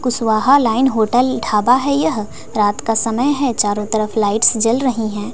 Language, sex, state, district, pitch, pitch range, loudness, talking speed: Hindi, female, Bihar, West Champaran, 225 Hz, 215-255 Hz, -16 LUFS, 180 wpm